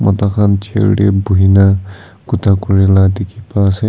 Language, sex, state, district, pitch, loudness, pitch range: Nagamese, male, Nagaland, Kohima, 100 Hz, -12 LUFS, 95-105 Hz